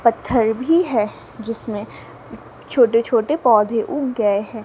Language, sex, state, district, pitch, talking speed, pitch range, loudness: Hindi, female, Jharkhand, Palamu, 230 Hz, 130 wpm, 220-250 Hz, -19 LUFS